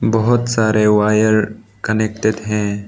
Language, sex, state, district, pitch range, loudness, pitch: Hindi, male, Arunachal Pradesh, Lower Dibang Valley, 105-110 Hz, -16 LUFS, 110 Hz